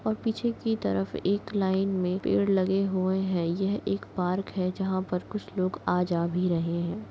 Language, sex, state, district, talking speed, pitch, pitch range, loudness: Hindi, female, Chhattisgarh, Kabirdham, 195 wpm, 190 Hz, 180-200 Hz, -28 LUFS